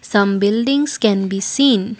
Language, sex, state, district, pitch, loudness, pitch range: English, female, Assam, Kamrup Metropolitan, 215 Hz, -16 LUFS, 200-260 Hz